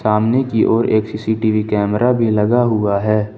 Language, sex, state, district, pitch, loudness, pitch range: Hindi, male, Jharkhand, Ranchi, 110 Hz, -16 LUFS, 105-115 Hz